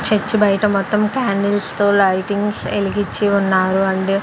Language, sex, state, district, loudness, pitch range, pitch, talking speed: Telugu, female, Andhra Pradesh, Sri Satya Sai, -17 LUFS, 195-210 Hz, 200 Hz, 115 wpm